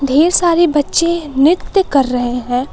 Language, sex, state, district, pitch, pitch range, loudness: Hindi, female, Jharkhand, Palamu, 295 Hz, 265-340 Hz, -14 LUFS